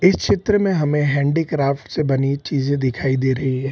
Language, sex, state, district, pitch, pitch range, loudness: Hindi, male, Bihar, Sitamarhi, 140 Hz, 135-155 Hz, -19 LUFS